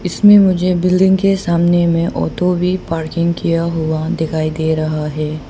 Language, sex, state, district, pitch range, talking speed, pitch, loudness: Hindi, female, Arunachal Pradesh, Papum Pare, 160-180 Hz, 165 wpm, 170 Hz, -15 LUFS